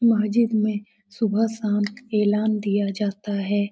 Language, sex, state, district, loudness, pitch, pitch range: Hindi, female, Bihar, Lakhisarai, -23 LUFS, 210 Hz, 205-220 Hz